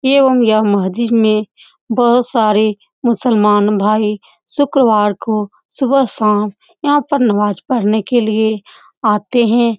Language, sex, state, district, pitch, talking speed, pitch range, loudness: Hindi, female, Uttar Pradesh, Muzaffarnagar, 220 Hz, 110 wpm, 210-250 Hz, -14 LUFS